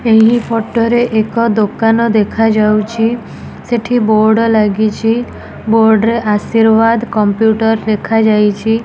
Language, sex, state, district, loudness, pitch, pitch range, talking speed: Odia, female, Odisha, Nuapada, -12 LUFS, 225 Hz, 215-230 Hz, 95 wpm